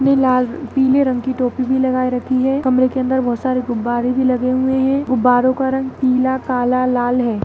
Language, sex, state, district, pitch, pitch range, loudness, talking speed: Kumaoni, female, Uttarakhand, Tehri Garhwal, 255 Hz, 250-260 Hz, -17 LUFS, 225 wpm